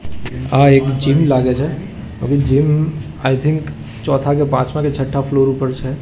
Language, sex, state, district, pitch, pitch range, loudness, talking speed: Gujarati, male, Gujarat, Gandhinagar, 135 Hz, 130-145 Hz, -16 LUFS, 160 wpm